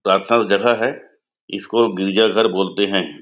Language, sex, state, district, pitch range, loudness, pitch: Hindi, male, Chhattisgarh, Raigarh, 95-115 Hz, -17 LUFS, 100 Hz